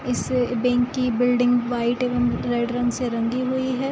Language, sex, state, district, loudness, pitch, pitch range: Hindi, female, Bihar, Sitamarhi, -22 LUFS, 245 Hz, 240-250 Hz